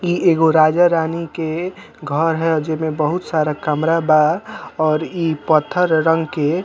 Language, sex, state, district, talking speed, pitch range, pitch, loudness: Bhojpuri, male, Bihar, Muzaffarpur, 160 wpm, 155-170 Hz, 160 Hz, -17 LUFS